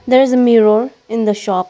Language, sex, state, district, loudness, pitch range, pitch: English, female, Arunachal Pradesh, Lower Dibang Valley, -13 LUFS, 210-250 Hz, 225 Hz